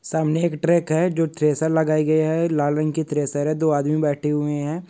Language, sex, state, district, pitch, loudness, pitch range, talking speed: Hindi, male, Uttar Pradesh, Etah, 155 Hz, -21 LUFS, 150-160 Hz, 245 wpm